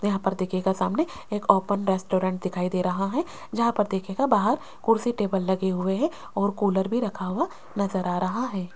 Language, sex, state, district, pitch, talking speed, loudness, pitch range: Hindi, female, Rajasthan, Jaipur, 195 Hz, 200 wpm, -26 LUFS, 185-220 Hz